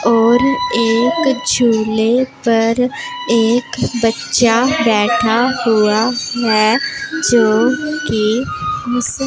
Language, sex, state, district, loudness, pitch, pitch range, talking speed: Hindi, female, Punjab, Pathankot, -14 LUFS, 240 Hz, 225-255 Hz, 80 wpm